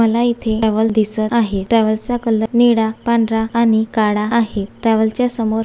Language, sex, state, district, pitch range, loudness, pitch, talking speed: Marathi, female, Maharashtra, Sindhudurg, 220-235 Hz, -16 LUFS, 225 Hz, 180 wpm